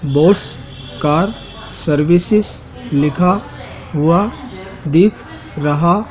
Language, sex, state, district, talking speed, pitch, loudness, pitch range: Hindi, male, Madhya Pradesh, Dhar, 70 wpm, 155 Hz, -15 LUFS, 145-185 Hz